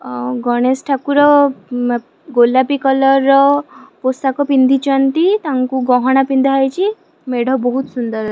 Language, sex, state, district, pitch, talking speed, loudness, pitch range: Odia, female, Odisha, Khordha, 270 Hz, 130 wpm, -14 LUFS, 250-280 Hz